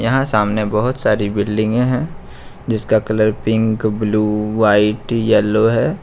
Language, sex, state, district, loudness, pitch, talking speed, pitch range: Hindi, male, Jharkhand, Ranchi, -16 LUFS, 110 Hz, 130 wpm, 105-110 Hz